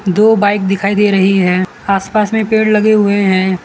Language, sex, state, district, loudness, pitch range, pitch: Hindi, male, Gujarat, Valsad, -12 LUFS, 190-215 Hz, 200 Hz